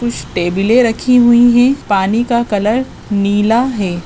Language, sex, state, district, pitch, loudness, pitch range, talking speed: Hindi, female, Uttar Pradesh, Jyotiba Phule Nagar, 230 Hz, -13 LUFS, 200-240 Hz, 150 wpm